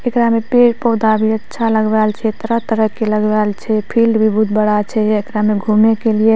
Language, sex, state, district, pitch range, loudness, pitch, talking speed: Maithili, female, Bihar, Madhepura, 215-225 Hz, -15 LUFS, 220 Hz, 205 wpm